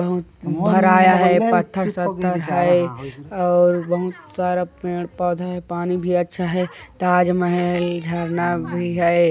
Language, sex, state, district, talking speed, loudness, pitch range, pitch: Chhattisgarhi, male, Chhattisgarh, Korba, 130 wpm, -19 LUFS, 175-180 Hz, 175 Hz